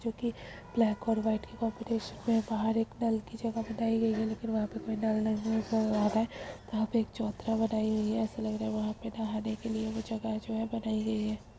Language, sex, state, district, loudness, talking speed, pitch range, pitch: Hindi, female, Bihar, Samastipur, -32 LUFS, 260 wpm, 220-225 Hz, 220 Hz